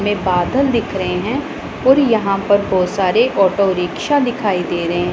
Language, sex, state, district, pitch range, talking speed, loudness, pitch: Hindi, female, Punjab, Pathankot, 180-240 Hz, 175 wpm, -16 LUFS, 200 Hz